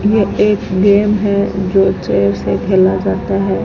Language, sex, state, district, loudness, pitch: Hindi, female, Rajasthan, Bikaner, -14 LUFS, 190 Hz